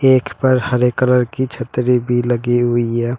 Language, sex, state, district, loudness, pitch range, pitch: Hindi, male, Uttar Pradesh, Shamli, -16 LUFS, 120-130 Hz, 125 Hz